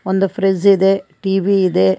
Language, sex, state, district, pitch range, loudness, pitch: Kannada, female, Karnataka, Koppal, 185-195 Hz, -15 LUFS, 195 Hz